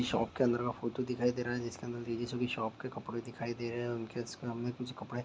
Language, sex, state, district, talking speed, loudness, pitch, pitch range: Hindi, male, Bihar, Sitamarhi, 250 wpm, -37 LUFS, 120 Hz, 115-125 Hz